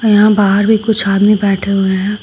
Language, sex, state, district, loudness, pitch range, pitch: Hindi, female, Uttar Pradesh, Shamli, -12 LUFS, 195-210 Hz, 205 Hz